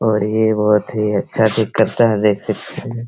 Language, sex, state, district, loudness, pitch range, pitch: Hindi, male, Bihar, Araria, -17 LUFS, 105-110 Hz, 110 Hz